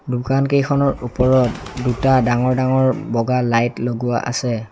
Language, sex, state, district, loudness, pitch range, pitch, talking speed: Assamese, male, Assam, Sonitpur, -18 LUFS, 120-130 Hz, 125 Hz, 115 wpm